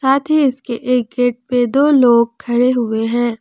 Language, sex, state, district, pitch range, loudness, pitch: Hindi, female, Jharkhand, Palamu, 235-265 Hz, -15 LUFS, 245 Hz